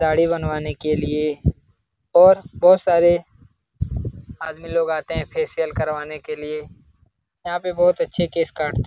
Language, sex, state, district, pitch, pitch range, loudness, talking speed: Hindi, male, Bihar, Jamui, 155 Hz, 130-170 Hz, -20 LUFS, 150 wpm